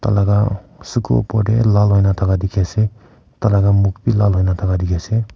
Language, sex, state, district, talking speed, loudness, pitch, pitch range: Nagamese, male, Nagaland, Kohima, 200 wpm, -16 LUFS, 100 Hz, 95-110 Hz